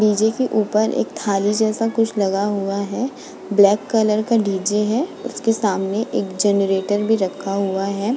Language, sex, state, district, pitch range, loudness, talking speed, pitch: Hindi, female, Uttar Pradesh, Muzaffarnagar, 200-220 Hz, -19 LUFS, 170 wpm, 210 Hz